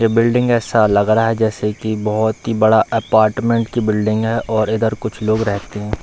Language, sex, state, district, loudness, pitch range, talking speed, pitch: Hindi, male, Bihar, Darbhanga, -16 LUFS, 110-115 Hz, 210 wpm, 110 Hz